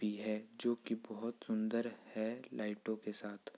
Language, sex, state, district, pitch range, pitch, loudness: Hindi, male, Uttar Pradesh, Ghazipur, 105-115 Hz, 110 Hz, -41 LUFS